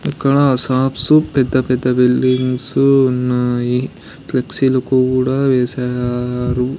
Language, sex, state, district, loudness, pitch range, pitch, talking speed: Telugu, male, Andhra Pradesh, Sri Satya Sai, -15 LUFS, 125-130 Hz, 130 Hz, 80 wpm